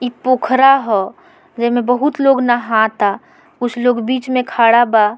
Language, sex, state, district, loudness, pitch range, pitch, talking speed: Bhojpuri, female, Bihar, Muzaffarpur, -14 LUFS, 230-265 Hz, 245 Hz, 150 wpm